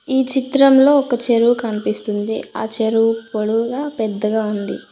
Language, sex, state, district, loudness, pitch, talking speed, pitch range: Telugu, female, Telangana, Mahabubabad, -17 LUFS, 225 Hz, 120 wpm, 215-265 Hz